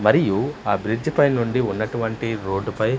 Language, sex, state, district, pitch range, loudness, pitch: Telugu, male, Andhra Pradesh, Manyam, 110-125 Hz, -22 LUFS, 115 Hz